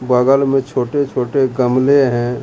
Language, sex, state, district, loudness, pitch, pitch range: Hindi, male, Bihar, Katihar, -15 LUFS, 130 Hz, 125-135 Hz